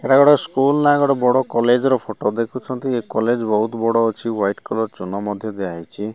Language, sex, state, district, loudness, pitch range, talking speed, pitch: Odia, male, Odisha, Malkangiri, -19 LUFS, 105-130 Hz, 195 wpm, 115 Hz